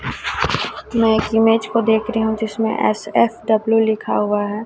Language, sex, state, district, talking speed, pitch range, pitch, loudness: Hindi, female, Chhattisgarh, Raipur, 155 wpm, 220-225 Hz, 220 Hz, -18 LUFS